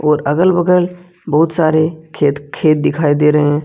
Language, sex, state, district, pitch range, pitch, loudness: Hindi, male, Jharkhand, Ranchi, 150-175 Hz, 155 Hz, -14 LUFS